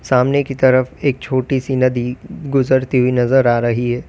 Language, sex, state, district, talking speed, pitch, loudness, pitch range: Hindi, male, Uttar Pradesh, Lalitpur, 190 wpm, 130 Hz, -16 LUFS, 125-135 Hz